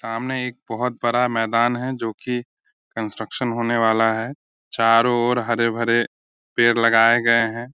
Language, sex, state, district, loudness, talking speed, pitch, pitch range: Hindi, male, Bihar, Muzaffarpur, -20 LUFS, 145 wpm, 115 Hz, 115-125 Hz